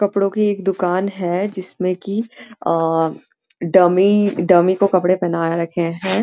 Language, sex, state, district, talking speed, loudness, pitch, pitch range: Hindi, female, Uttarakhand, Uttarkashi, 155 wpm, -18 LUFS, 185 Hz, 175-200 Hz